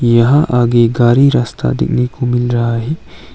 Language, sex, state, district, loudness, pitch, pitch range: Hindi, male, Arunachal Pradesh, Longding, -13 LUFS, 120 Hz, 115-125 Hz